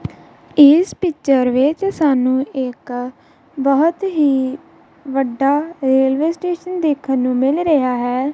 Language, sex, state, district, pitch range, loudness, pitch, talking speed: Punjabi, female, Punjab, Kapurthala, 260-315 Hz, -16 LUFS, 275 Hz, 110 wpm